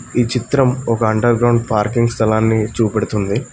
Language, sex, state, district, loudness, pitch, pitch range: Telugu, male, Telangana, Mahabubabad, -16 LUFS, 115 Hz, 110-120 Hz